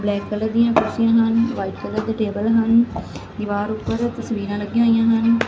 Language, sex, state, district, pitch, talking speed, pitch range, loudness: Punjabi, female, Punjab, Fazilka, 225 Hz, 175 wpm, 210-230 Hz, -20 LUFS